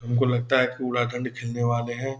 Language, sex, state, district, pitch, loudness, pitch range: Hindi, male, Bihar, Purnia, 125 Hz, -25 LUFS, 120-125 Hz